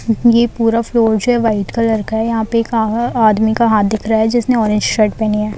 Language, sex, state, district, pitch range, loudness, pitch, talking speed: Hindi, female, Chhattisgarh, Bilaspur, 220-230 Hz, -14 LUFS, 225 Hz, 260 wpm